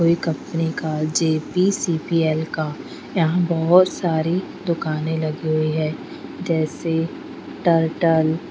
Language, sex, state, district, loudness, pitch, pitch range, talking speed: Hindi, female, Bihar, Patna, -21 LUFS, 160 Hz, 155-170 Hz, 135 wpm